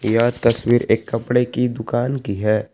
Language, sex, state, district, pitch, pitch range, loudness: Hindi, male, Jharkhand, Palamu, 120 Hz, 115-120 Hz, -19 LUFS